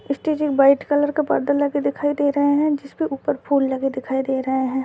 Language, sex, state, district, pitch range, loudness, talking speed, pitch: Hindi, female, Uttar Pradesh, Deoria, 270-290 Hz, -20 LUFS, 245 wpm, 280 Hz